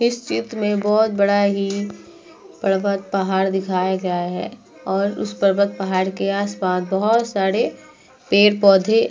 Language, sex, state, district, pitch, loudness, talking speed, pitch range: Hindi, female, Uttar Pradesh, Muzaffarnagar, 200 Hz, -19 LUFS, 125 wpm, 190-210 Hz